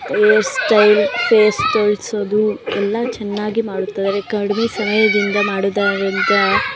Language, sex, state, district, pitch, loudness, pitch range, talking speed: Kannada, female, Karnataka, Mysore, 210 Hz, -16 LUFS, 205-215 Hz, 90 wpm